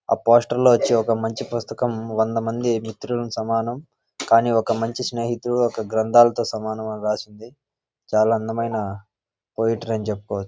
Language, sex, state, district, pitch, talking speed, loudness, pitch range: Telugu, male, Andhra Pradesh, Visakhapatnam, 115 Hz, 145 wpm, -21 LUFS, 110-120 Hz